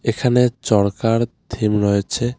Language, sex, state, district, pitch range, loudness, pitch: Bengali, male, West Bengal, Alipurduar, 100-120 Hz, -18 LUFS, 115 Hz